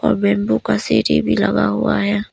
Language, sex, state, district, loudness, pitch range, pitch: Hindi, female, Arunachal Pradesh, Papum Pare, -17 LUFS, 100-105 Hz, 105 Hz